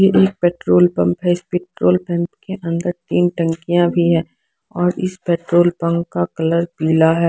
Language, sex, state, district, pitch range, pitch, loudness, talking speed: Hindi, female, Odisha, Sambalpur, 165-175 Hz, 170 Hz, -17 LUFS, 180 wpm